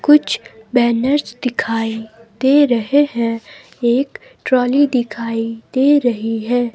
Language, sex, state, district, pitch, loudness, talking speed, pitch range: Hindi, female, Himachal Pradesh, Shimla, 245 Hz, -17 LUFS, 105 wpm, 230-280 Hz